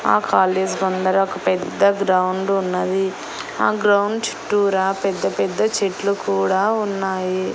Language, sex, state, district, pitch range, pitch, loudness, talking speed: Telugu, female, Andhra Pradesh, Annamaya, 185-200 Hz, 190 Hz, -19 LUFS, 120 wpm